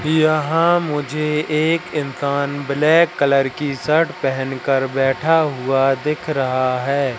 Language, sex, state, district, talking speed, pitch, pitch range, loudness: Hindi, male, Madhya Pradesh, Katni, 125 wpm, 145 Hz, 135-155 Hz, -18 LUFS